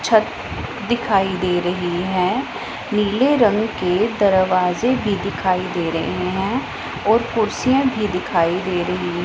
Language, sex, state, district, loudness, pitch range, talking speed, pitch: Hindi, female, Punjab, Pathankot, -19 LUFS, 180-220 Hz, 135 wpm, 190 Hz